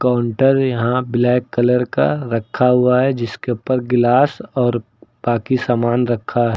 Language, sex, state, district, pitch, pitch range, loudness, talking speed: Hindi, male, Uttar Pradesh, Lucknow, 125 Hz, 120-130 Hz, -17 LUFS, 135 wpm